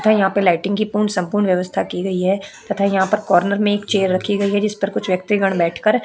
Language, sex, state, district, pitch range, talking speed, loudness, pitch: Hindi, female, Uttar Pradesh, Budaun, 185-205 Hz, 270 wpm, -18 LUFS, 200 Hz